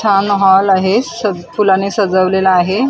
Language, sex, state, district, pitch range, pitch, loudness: Marathi, female, Maharashtra, Mumbai Suburban, 190-205 Hz, 195 Hz, -13 LUFS